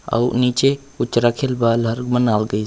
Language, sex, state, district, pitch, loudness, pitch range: Chhattisgarhi, male, Chhattisgarh, Raigarh, 120 Hz, -18 LUFS, 115-125 Hz